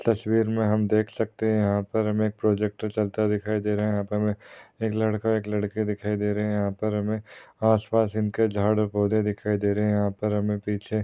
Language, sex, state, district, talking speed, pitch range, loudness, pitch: Hindi, male, Maharashtra, Aurangabad, 240 wpm, 105-110 Hz, -25 LUFS, 105 Hz